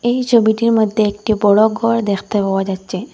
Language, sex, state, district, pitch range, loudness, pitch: Bengali, female, Assam, Hailakandi, 200-230 Hz, -15 LUFS, 215 Hz